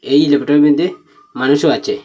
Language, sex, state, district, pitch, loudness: Bengali, male, Assam, Hailakandi, 150 Hz, -13 LUFS